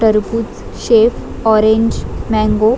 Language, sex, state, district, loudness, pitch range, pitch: Marathi, female, Maharashtra, Dhule, -14 LUFS, 215-225 Hz, 220 Hz